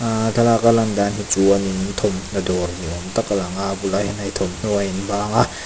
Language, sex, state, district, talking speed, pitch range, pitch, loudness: Mizo, male, Mizoram, Aizawl, 255 wpm, 95-105 Hz, 100 Hz, -20 LUFS